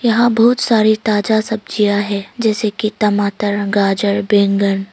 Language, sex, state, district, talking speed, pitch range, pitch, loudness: Hindi, female, Arunachal Pradesh, Longding, 120 wpm, 200-220 Hz, 210 Hz, -15 LUFS